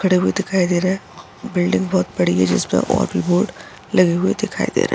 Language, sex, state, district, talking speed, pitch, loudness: Hindi, female, Bihar, Saharsa, 255 wpm, 175 Hz, -18 LUFS